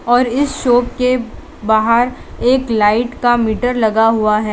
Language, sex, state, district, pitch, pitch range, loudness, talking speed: Hindi, female, Gujarat, Valsad, 240 Hz, 220-250 Hz, -14 LUFS, 160 wpm